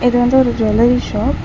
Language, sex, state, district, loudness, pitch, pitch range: Tamil, female, Tamil Nadu, Chennai, -14 LUFS, 245 Hz, 235-250 Hz